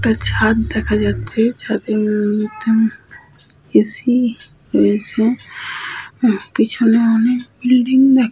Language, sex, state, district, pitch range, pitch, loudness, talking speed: Bengali, female, West Bengal, Purulia, 205-240 Hz, 225 Hz, -16 LUFS, 100 wpm